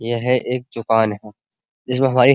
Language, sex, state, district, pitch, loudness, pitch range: Hindi, male, Uttar Pradesh, Muzaffarnagar, 125 Hz, -19 LUFS, 115-125 Hz